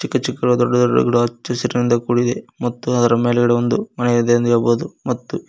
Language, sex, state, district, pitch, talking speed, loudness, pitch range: Kannada, male, Karnataka, Koppal, 120 Hz, 185 wpm, -18 LUFS, 120-125 Hz